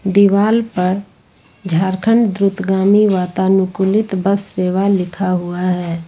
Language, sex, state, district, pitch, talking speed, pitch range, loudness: Hindi, female, Jharkhand, Ranchi, 190 Hz, 100 wpm, 185-200 Hz, -15 LUFS